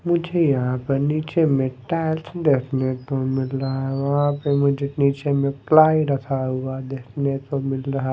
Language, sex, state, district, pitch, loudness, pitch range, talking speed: Hindi, male, Delhi, New Delhi, 140 Hz, -21 LUFS, 135-145 Hz, 175 wpm